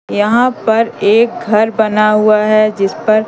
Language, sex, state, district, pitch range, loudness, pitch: Hindi, female, Madhya Pradesh, Katni, 215-225 Hz, -12 LUFS, 215 Hz